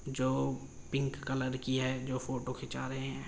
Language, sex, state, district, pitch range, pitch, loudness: Hindi, male, Uttar Pradesh, Jalaun, 130-135 Hz, 130 Hz, -36 LUFS